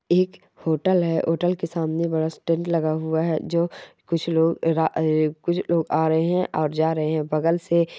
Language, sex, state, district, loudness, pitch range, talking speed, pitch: Hindi, female, Rajasthan, Churu, -23 LUFS, 160-170 Hz, 185 wpm, 165 Hz